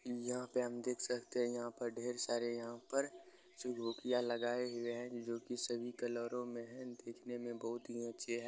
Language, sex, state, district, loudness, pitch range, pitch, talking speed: Hindi, male, Bihar, Bhagalpur, -42 LUFS, 120-125 Hz, 120 Hz, 200 wpm